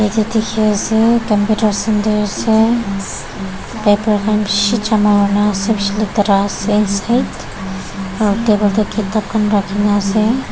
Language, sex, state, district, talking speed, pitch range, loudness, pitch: Nagamese, female, Nagaland, Dimapur, 125 wpm, 205-220 Hz, -15 LUFS, 210 Hz